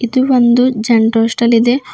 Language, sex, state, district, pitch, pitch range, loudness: Kannada, female, Karnataka, Bidar, 240 Hz, 230-250 Hz, -12 LUFS